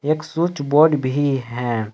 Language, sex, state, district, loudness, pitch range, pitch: Hindi, male, Jharkhand, Palamu, -19 LUFS, 125-155 Hz, 145 Hz